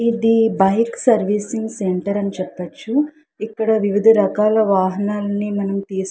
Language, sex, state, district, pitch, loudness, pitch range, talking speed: Telugu, female, Andhra Pradesh, Krishna, 205 Hz, -18 LUFS, 195-225 Hz, 125 wpm